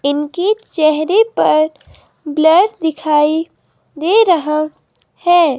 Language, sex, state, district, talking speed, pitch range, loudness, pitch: Hindi, female, Himachal Pradesh, Shimla, 85 wpm, 305-355 Hz, -14 LUFS, 320 Hz